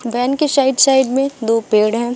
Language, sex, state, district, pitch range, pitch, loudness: Hindi, female, Uttar Pradesh, Shamli, 230-270 Hz, 250 Hz, -15 LUFS